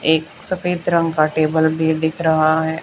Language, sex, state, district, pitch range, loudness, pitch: Hindi, female, Haryana, Charkhi Dadri, 160-165 Hz, -18 LUFS, 160 Hz